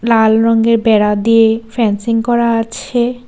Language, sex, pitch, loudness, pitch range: Bengali, female, 230 Hz, -13 LUFS, 225-235 Hz